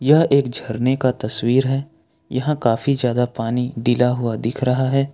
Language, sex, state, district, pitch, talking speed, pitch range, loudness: Hindi, male, Jharkhand, Ranchi, 125 Hz, 175 wpm, 120-135 Hz, -19 LUFS